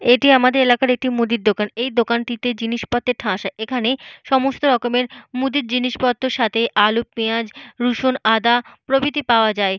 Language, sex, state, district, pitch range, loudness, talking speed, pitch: Bengali, female, Jharkhand, Jamtara, 230-255 Hz, -18 LUFS, 135 wpm, 245 Hz